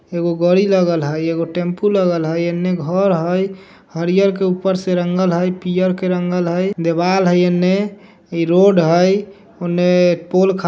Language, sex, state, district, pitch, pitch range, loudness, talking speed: Hindi, male, Bihar, Darbhanga, 180 Hz, 175-190 Hz, -16 LUFS, 175 wpm